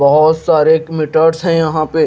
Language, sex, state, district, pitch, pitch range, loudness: Hindi, male, Haryana, Jhajjar, 160 Hz, 155-160 Hz, -12 LUFS